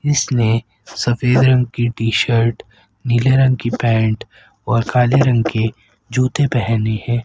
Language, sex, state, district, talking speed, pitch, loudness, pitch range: Hindi, female, Haryana, Rohtak, 140 wpm, 120 Hz, -16 LUFS, 115-130 Hz